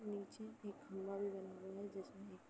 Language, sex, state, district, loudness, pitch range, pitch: Hindi, female, Uttar Pradesh, Jalaun, -49 LUFS, 195-205 Hz, 200 Hz